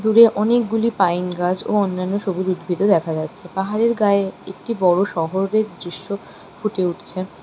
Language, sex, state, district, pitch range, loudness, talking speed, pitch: Bengali, female, West Bengal, Darjeeling, 180-215 Hz, -20 LUFS, 145 wpm, 195 Hz